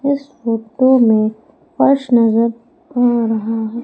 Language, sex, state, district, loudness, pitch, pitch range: Hindi, female, Madhya Pradesh, Umaria, -15 LUFS, 235 Hz, 225-260 Hz